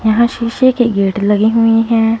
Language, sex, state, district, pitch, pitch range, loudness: Hindi, female, Punjab, Fazilka, 225 Hz, 215-235 Hz, -13 LUFS